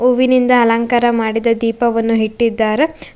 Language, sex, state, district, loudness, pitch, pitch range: Kannada, female, Karnataka, Bangalore, -14 LUFS, 235 Hz, 230-250 Hz